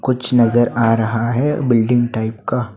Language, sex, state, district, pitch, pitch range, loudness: Hindi, male, Assam, Hailakandi, 120 Hz, 115-125 Hz, -16 LUFS